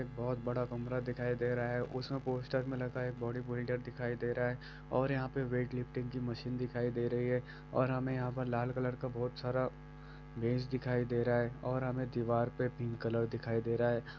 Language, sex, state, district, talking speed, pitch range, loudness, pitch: Hindi, male, Bihar, Saran, 170 wpm, 120-130 Hz, -37 LUFS, 125 Hz